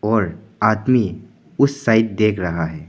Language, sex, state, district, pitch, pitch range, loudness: Hindi, male, Arunachal Pradesh, Papum Pare, 110 Hz, 95-115 Hz, -18 LUFS